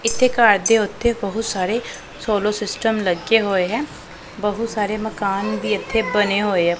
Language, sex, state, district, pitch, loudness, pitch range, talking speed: Punjabi, female, Punjab, Pathankot, 210 Hz, -19 LUFS, 200-225 Hz, 170 wpm